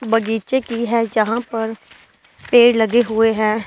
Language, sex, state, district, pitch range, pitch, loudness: Hindi, female, Delhi, New Delhi, 220-235 Hz, 225 Hz, -17 LUFS